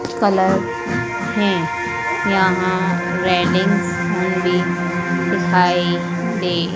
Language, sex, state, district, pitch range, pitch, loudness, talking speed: Hindi, female, Madhya Pradesh, Dhar, 175-185 Hz, 175 Hz, -18 LUFS, 60 wpm